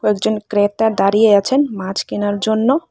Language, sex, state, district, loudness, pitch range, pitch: Bengali, female, Tripura, West Tripura, -16 LUFS, 205-220 Hz, 210 Hz